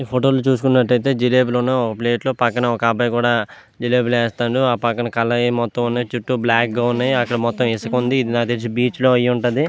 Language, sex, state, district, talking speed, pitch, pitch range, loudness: Telugu, male, Andhra Pradesh, Visakhapatnam, 185 wpm, 120 Hz, 120-125 Hz, -18 LUFS